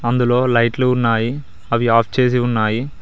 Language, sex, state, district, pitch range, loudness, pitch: Telugu, male, Telangana, Mahabubabad, 115-125 Hz, -17 LUFS, 120 Hz